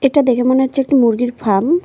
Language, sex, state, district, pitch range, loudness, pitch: Bengali, female, West Bengal, Cooch Behar, 240-275 Hz, -14 LUFS, 260 Hz